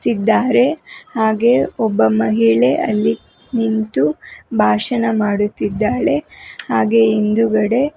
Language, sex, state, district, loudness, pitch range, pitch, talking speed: Kannada, female, Karnataka, Bangalore, -16 LUFS, 205-230 Hz, 220 Hz, 85 wpm